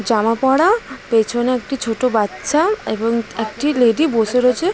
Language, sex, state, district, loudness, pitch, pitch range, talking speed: Bengali, female, West Bengal, Jalpaiguri, -17 LUFS, 245 Hz, 225-285 Hz, 140 wpm